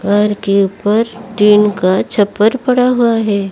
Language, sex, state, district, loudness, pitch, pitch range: Hindi, female, Odisha, Malkangiri, -13 LUFS, 210 Hz, 200-230 Hz